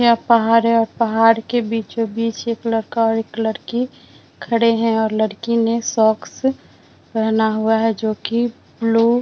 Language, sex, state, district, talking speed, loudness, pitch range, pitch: Hindi, female, Bihar, Vaishali, 155 wpm, -18 LUFS, 220-230 Hz, 225 Hz